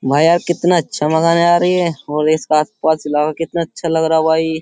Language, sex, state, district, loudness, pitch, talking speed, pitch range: Hindi, male, Uttar Pradesh, Jyotiba Phule Nagar, -15 LUFS, 160 Hz, 220 wpm, 155-170 Hz